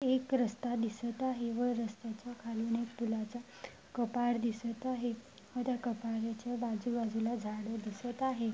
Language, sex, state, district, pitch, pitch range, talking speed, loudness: Marathi, female, Maharashtra, Dhule, 235 Hz, 225-245 Hz, 135 wpm, -37 LUFS